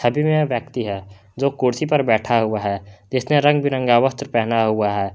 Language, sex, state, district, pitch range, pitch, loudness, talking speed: Hindi, male, Jharkhand, Palamu, 105-140 Hz, 120 Hz, -19 LUFS, 200 wpm